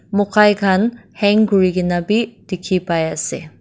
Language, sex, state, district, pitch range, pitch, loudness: Nagamese, female, Nagaland, Dimapur, 185-210 Hz, 200 Hz, -17 LUFS